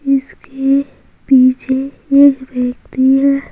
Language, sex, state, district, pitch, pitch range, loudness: Hindi, female, Bihar, Patna, 270 Hz, 260-275 Hz, -13 LUFS